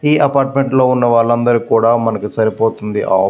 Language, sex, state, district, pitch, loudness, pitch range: Telugu, male, Andhra Pradesh, Visakhapatnam, 115 Hz, -14 LUFS, 110-130 Hz